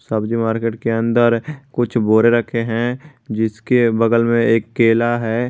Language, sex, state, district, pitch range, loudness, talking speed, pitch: Hindi, male, Jharkhand, Garhwa, 115-120 Hz, -17 LUFS, 155 wpm, 115 Hz